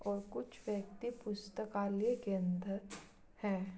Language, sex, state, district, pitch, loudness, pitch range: Hindi, female, Bihar, Kishanganj, 200 Hz, -40 LUFS, 195-210 Hz